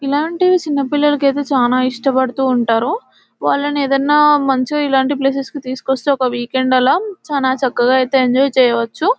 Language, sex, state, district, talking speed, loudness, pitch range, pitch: Telugu, female, Telangana, Nalgonda, 145 wpm, -15 LUFS, 255-290 Hz, 275 Hz